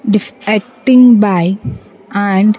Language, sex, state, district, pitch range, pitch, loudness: English, female, Andhra Pradesh, Sri Satya Sai, 200-245 Hz, 210 Hz, -11 LUFS